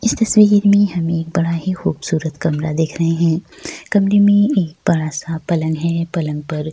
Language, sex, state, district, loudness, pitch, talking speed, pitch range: Hindi, female, Bihar, Kishanganj, -17 LUFS, 165 Hz, 195 wpm, 160-200 Hz